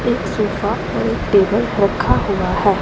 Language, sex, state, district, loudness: Hindi, female, Punjab, Pathankot, -17 LUFS